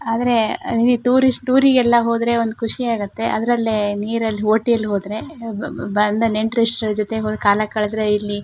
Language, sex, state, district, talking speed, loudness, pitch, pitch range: Kannada, female, Karnataka, Shimoga, 130 wpm, -18 LUFS, 225 Hz, 215-235 Hz